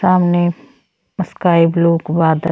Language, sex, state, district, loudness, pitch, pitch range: Bhojpuri, female, Uttar Pradesh, Deoria, -15 LUFS, 170 Hz, 165-175 Hz